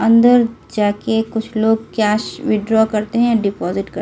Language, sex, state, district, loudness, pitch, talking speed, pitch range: Hindi, female, Delhi, New Delhi, -16 LUFS, 220 Hz, 165 wpm, 210-225 Hz